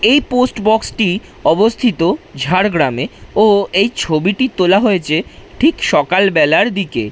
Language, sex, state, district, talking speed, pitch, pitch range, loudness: Bengali, male, West Bengal, Jhargram, 125 wpm, 195 Hz, 170-225 Hz, -14 LUFS